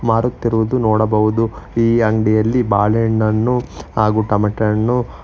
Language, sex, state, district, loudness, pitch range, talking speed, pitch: Kannada, male, Karnataka, Bangalore, -16 LUFS, 110-115 Hz, 90 wpm, 110 Hz